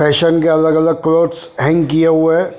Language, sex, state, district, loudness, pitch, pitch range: Hindi, male, Punjab, Fazilka, -13 LUFS, 160 Hz, 160-165 Hz